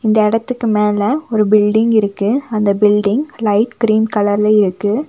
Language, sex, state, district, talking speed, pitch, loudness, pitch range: Tamil, female, Tamil Nadu, Nilgiris, 140 wpm, 215 Hz, -14 LUFS, 210-225 Hz